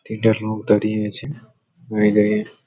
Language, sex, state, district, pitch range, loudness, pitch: Bengali, male, West Bengal, Malda, 105-115 Hz, -19 LUFS, 110 Hz